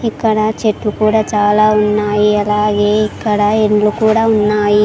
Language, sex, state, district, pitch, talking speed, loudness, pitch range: Telugu, female, Andhra Pradesh, Sri Satya Sai, 210 Hz, 125 wpm, -13 LUFS, 210-215 Hz